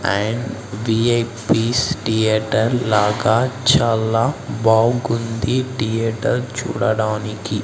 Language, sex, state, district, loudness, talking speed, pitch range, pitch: Telugu, male, Andhra Pradesh, Sri Satya Sai, -18 LUFS, 65 wpm, 110-120 Hz, 115 Hz